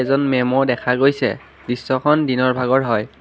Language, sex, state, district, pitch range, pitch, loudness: Assamese, male, Assam, Kamrup Metropolitan, 125-135 Hz, 130 Hz, -18 LUFS